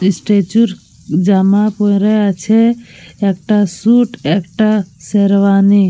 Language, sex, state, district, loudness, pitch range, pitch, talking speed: Bengali, female, Jharkhand, Jamtara, -13 LUFS, 195-215 Hz, 200 Hz, 90 wpm